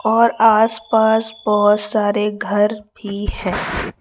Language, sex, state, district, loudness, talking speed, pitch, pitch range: Hindi, female, Chhattisgarh, Raipur, -17 LUFS, 120 wpm, 215 Hz, 210-220 Hz